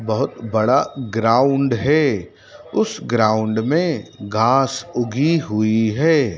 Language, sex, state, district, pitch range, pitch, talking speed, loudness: Hindi, male, Madhya Pradesh, Dhar, 110-140 Hz, 120 Hz, 105 wpm, -18 LUFS